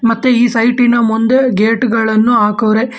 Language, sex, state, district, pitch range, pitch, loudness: Kannada, male, Karnataka, Bangalore, 225-245 Hz, 230 Hz, -12 LUFS